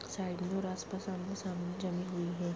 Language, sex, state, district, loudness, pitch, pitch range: Hindi, female, Bihar, Madhepura, -38 LUFS, 185 Hz, 175-190 Hz